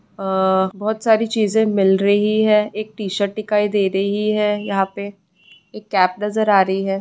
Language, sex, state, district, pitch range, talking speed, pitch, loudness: Hindi, female, West Bengal, Purulia, 195-215 Hz, 180 wpm, 205 Hz, -18 LUFS